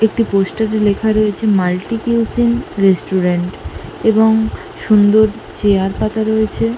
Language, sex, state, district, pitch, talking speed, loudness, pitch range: Bengali, female, West Bengal, North 24 Parganas, 215 Hz, 115 wpm, -15 LUFS, 195-220 Hz